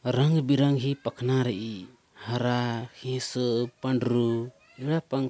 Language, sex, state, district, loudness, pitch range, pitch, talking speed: Hindi, male, Chhattisgarh, Jashpur, -27 LUFS, 120-135 Hz, 125 Hz, 100 wpm